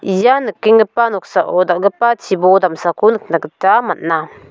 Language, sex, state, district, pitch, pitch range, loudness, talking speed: Garo, female, Meghalaya, South Garo Hills, 195 Hz, 175-225 Hz, -14 LUFS, 120 wpm